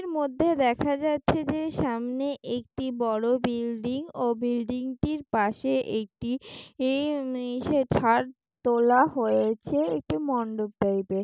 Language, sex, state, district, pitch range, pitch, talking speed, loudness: Bengali, female, West Bengal, Jalpaiguri, 230-280 Hz, 250 Hz, 115 wpm, -27 LUFS